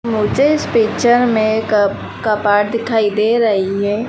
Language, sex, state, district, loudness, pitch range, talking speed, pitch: Hindi, female, Madhya Pradesh, Dhar, -15 LUFS, 210-230 Hz, 145 wpm, 220 Hz